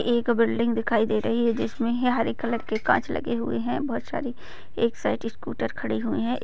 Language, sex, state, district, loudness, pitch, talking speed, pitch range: Hindi, female, Maharashtra, Sindhudurg, -26 LUFS, 230 Hz, 215 wpm, 215-235 Hz